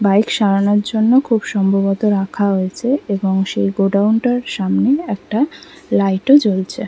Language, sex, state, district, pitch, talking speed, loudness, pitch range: Bengali, female, West Bengal, Kolkata, 205 Hz, 130 wpm, -16 LUFS, 195-230 Hz